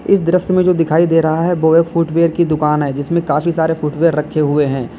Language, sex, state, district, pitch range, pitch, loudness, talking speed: Hindi, male, Uttar Pradesh, Lalitpur, 150-170 Hz, 165 Hz, -14 LUFS, 250 wpm